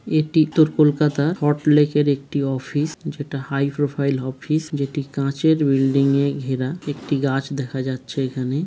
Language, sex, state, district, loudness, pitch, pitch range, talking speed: Bengali, male, West Bengal, Kolkata, -21 LUFS, 140 Hz, 135-150 Hz, 150 wpm